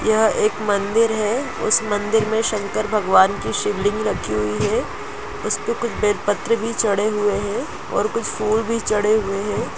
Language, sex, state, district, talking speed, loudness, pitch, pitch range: Hindi, female, Jharkhand, Jamtara, 170 wpm, -20 LUFS, 210 Hz, 205-220 Hz